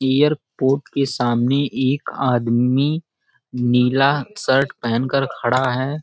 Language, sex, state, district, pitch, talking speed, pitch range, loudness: Hindi, male, Bihar, Gopalganj, 135 Hz, 130 wpm, 125-140 Hz, -19 LUFS